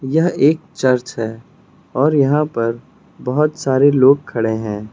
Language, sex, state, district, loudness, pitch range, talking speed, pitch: Hindi, male, Uttar Pradesh, Lucknow, -16 LUFS, 115-150 Hz, 145 wpm, 135 Hz